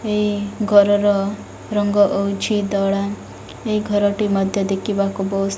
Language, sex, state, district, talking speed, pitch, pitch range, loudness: Odia, female, Odisha, Malkangiri, 130 wpm, 205 Hz, 195-210 Hz, -19 LUFS